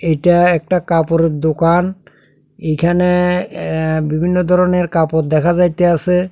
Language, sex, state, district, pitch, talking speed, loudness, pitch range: Bengali, male, Tripura, South Tripura, 175 Hz, 105 wpm, -14 LUFS, 160-180 Hz